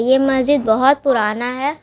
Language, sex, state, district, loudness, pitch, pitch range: Hindi, female, Bihar, Gaya, -16 LUFS, 265 Hz, 240-280 Hz